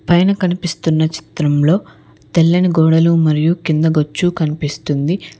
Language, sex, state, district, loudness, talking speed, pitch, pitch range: Telugu, female, Telangana, Hyderabad, -15 LUFS, 100 wpm, 160 Hz, 155-175 Hz